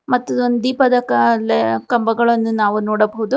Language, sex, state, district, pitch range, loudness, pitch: Kannada, female, Karnataka, Bangalore, 205-245 Hz, -16 LUFS, 225 Hz